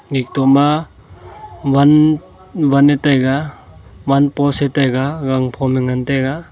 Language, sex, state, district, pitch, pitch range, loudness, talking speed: Wancho, male, Arunachal Pradesh, Longding, 140 Hz, 130-145 Hz, -15 LUFS, 130 wpm